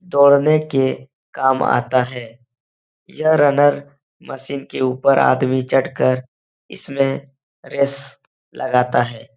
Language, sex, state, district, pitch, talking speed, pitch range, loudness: Hindi, male, Uttar Pradesh, Etah, 135 Hz, 110 wpm, 125-140 Hz, -17 LUFS